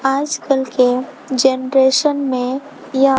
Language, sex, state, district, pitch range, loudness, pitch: Hindi, female, Bihar, West Champaran, 260-285 Hz, -17 LUFS, 270 Hz